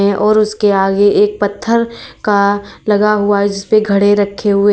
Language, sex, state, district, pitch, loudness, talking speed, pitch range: Hindi, female, Uttar Pradesh, Lalitpur, 205 Hz, -13 LUFS, 180 wpm, 200-210 Hz